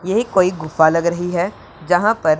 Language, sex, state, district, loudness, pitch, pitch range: Hindi, male, Punjab, Pathankot, -17 LUFS, 175 Hz, 160-190 Hz